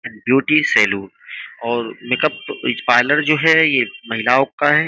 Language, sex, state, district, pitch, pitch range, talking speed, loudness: Hindi, male, Uttar Pradesh, Jyotiba Phule Nagar, 130 Hz, 120-150 Hz, 135 wpm, -16 LUFS